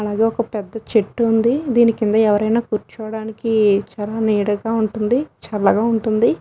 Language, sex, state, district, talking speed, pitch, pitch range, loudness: Telugu, female, Telangana, Nalgonda, 110 wpm, 220 Hz, 215-230 Hz, -18 LUFS